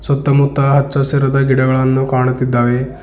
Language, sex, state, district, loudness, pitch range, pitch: Kannada, male, Karnataka, Bidar, -14 LUFS, 130-140 Hz, 135 Hz